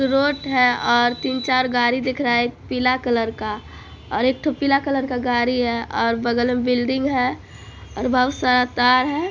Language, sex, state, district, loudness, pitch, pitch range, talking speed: Maithili, female, Bihar, Supaul, -20 LUFS, 250 Hz, 245-265 Hz, 195 wpm